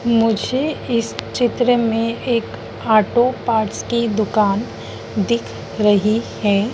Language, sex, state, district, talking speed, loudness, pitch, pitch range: Hindi, female, Madhya Pradesh, Dhar, 105 wpm, -18 LUFS, 230 Hz, 215-240 Hz